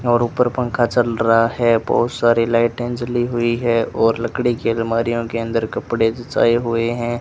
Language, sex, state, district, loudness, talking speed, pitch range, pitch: Hindi, male, Rajasthan, Bikaner, -18 LUFS, 185 wpm, 115-120 Hz, 115 Hz